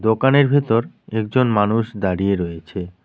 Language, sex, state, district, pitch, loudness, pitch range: Bengali, male, West Bengal, Cooch Behar, 110 Hz, -19 LUFS, 95-120 Hz